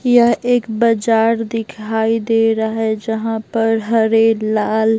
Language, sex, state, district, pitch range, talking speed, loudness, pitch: Hindi, female, Bihar, Patna, 220-230 Hz, 145 wpm, -16 LUFS, 225 Hz